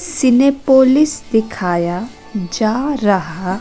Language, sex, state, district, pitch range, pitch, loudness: Hindi, female, Chandigarh, Chandigarh, 185-270 Hz, 225 Hz, -15 LUFS